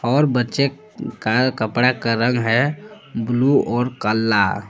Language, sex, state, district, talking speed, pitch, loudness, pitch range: Hindi, male, Jharkhand, Palamu, 125 wpm, 125 Hz, -19 LUFS, 115-140 Hz